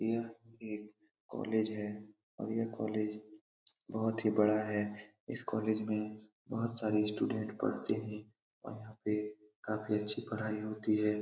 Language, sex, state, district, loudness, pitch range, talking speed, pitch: Hindi, male, Bihar, Saran, -37 LUFS, 105-110 Hz, 140 wpm, 110 Hz